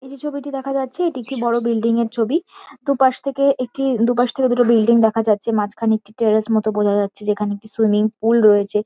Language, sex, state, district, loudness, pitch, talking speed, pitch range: Bengali, female, West Bengal, Kolkata, -18 LUFS, 230 Hz, 210 wpm, 215-270 Hz